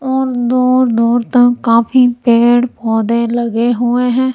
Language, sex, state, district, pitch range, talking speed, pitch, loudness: Hindi, female, Punjab, Kapurthala, 235-250 Hz, 140 wpm, 240 Hz, -12 LUFS